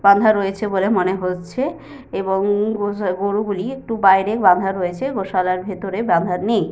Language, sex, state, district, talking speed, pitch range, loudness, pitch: Bengali, female, Jharkhand, Sahebganj, 145 wpm, 185-210 Hz, -19 LUFS, 195 Hz